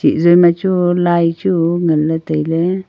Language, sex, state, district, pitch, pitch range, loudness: Wancho, female, Arunachal Pradesh, Longding, 170 Hz, 165-175 Hz, -14 LUFS